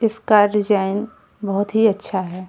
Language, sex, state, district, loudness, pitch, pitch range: Hindi, female, Uttar Pradesh, Jyotiba Phule Nagar, -18 LUFS, 205 Hz, 195-220 Hz